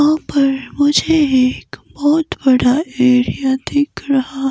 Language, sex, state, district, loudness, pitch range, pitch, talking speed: Hindi, female, Himachal Pradesh, Shimla, -15 LUFS, 265-295 Hz, 275 Hz, 135 wpm